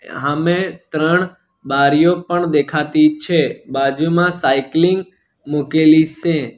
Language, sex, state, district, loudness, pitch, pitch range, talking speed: Gujarati, male, Gujarat, Valsad, -16 LUFS, 160 Hz, 150-175 Hz, 90 wpm